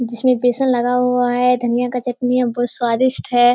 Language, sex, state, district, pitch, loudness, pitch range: Hindi, female, Bihar, Kishanganj, 245 Hz, -17 LUFS, 245-250 Hz